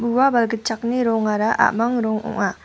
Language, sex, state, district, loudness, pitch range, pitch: Garo, female, Meghalaya, West Garo Hills, -20 LUFS, 220-235 Hz, 225 Hz